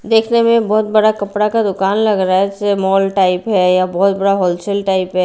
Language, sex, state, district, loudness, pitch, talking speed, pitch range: Hindi, female, Bihar, Patna, -14 LUFS, 200 Hz, 240 wpm, 190-215 Hz